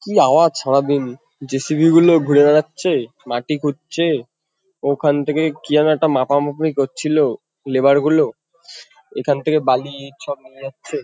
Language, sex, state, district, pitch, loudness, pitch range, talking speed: Bengali, male, West Bengal, Kolkata, 145 Hz, -17 LUFS, 140-160 Hz, 135 wpm